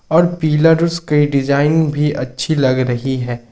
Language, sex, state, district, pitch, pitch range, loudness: Hindi, male, Jharkhand, Ranchi, 145 Hz, 130-160 Hz, -15 LUFS